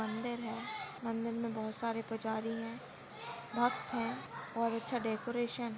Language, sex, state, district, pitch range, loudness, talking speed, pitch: Hindi, female, Goa, North and South Goa, 225-240 Hz, -38 LUFS, 145 wpm, 230 Hz